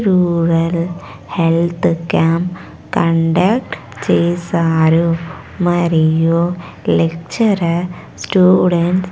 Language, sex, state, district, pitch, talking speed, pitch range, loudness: Telugu, female, Andhra Pradesh, Sri Satya Sai, 170 Hz, 60 wpm, 165-180 Hz, -15 LUFS